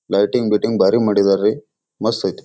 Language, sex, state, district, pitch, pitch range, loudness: Kannada, male, Karnataka, Bijapur, 105 Hz, 100-110 Hz, -17 LUFS